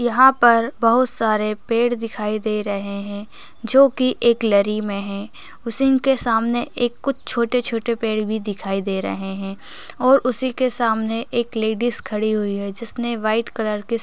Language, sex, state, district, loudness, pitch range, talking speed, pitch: Hindi, female, Bihar, Purnia, -20 LUFS, 210-240 Hz, 175 wpm, 230 Hz